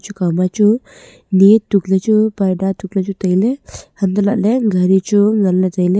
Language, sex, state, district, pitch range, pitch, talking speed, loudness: Wancho, female, Arunachal Pradesh, Longding, 190-210 Hz, 200 Hz, 140 wpm, -15 LUFS